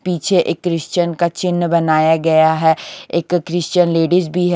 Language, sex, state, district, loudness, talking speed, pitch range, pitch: Hindi, female, Haryana, Rohtak, -16 LUFS, 170 wpm, 160-175 Hz, 170 Hz